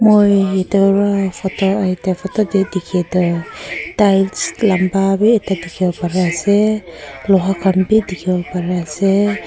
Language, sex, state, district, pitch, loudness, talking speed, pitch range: Nagamese, female, Nagaland, Kohima, 195 Hz, -16 LUFS, 120 wpm, 185-200 Hz